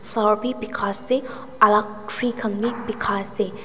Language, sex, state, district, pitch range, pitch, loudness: Nagamese, female, Nagaland, Dimapur, 210-240 Hz, 220 Hz, -21 LUFS